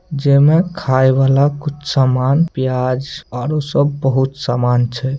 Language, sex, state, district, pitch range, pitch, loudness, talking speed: Maithili, male, Bihar, Samastipur, 130-145 Hz, 135 Hz, -15 LUFS, 140 wpm